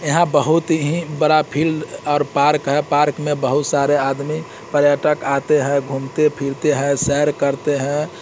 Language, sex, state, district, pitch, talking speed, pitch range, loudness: Hindi, male, Bihar, Muzaffarpur, 145 Hz, 160 wpm, 140-155 Hz, -18 LUFS